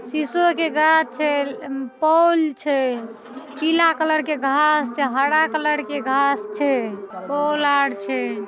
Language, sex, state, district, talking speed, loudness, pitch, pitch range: Maithili, female, Bihar, Saharsa, 150 wpm, -20 LUFS, 290 Hz, 265-310 Hz